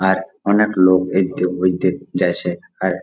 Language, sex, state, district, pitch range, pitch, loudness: Bengali, male, West Bengal, Jalpaiguri, 90-95 Hz, 95 Hz, -18 LUFS